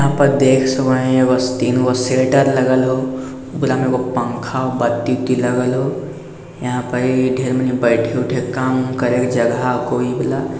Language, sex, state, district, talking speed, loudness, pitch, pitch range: Maithili, male, Bihar, Lakhisarai, 185 wpm, -17 LUFS, 130 Hz, 125-130 Hz